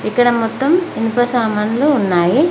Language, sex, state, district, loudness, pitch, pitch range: Telugu, female, Telangana, Mahabubabad, -15 LUFS, 240 Hz, 225-280 Hz